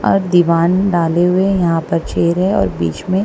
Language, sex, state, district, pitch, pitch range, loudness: Hindi, female, Punjab, Kapurthala, 175 Hz, 165-185 Hz, -15 LUFS